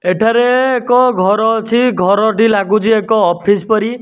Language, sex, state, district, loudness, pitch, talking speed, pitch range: Odia, male, Odisha, Nuapada, -12 LUFS, 220 Hz, 150 wpm, 205-240 Hz